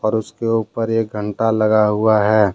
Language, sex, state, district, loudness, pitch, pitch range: Hindi, male, Jharkhand, Deoghar, -17 LUFS, 110 Hz, 105-115 Hz